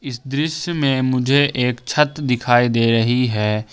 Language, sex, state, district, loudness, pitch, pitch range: Hindi, male, Jharkhand, Ranchi, -18 LUFS, 125 Hz, 120-145 Hz